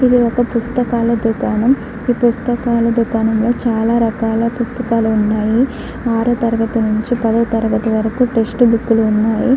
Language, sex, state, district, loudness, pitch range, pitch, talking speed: Telugu, female, Andhra Pradesh, Guntur, -15 LUFS, 225-240 Hz, 230 Hz, 130 wpm